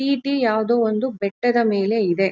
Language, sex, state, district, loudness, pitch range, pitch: Kannada, female, Karnataka, Mysore, -20 LUFS, 200-245 Hz, 225 Hz